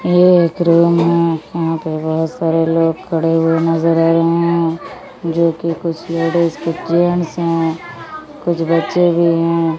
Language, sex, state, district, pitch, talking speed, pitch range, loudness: Hindi, female, Odisha, Malkangiri, 165 Hz, 160 wpm, 165-170 Hz, -15 LUFS